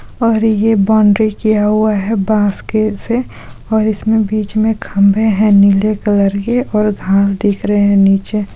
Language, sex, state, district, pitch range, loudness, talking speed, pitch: Hindi, female, Bihar, Supaul, 200-220 Hz, -13 LUFS, 170 wpm, 210 Hz